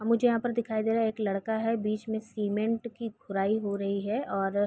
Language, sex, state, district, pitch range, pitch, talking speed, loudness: Hindi, female, Chhattisgarh, Raigarh, 205-230 Hz, 220 Hz, 255 wpm, -30 LUFS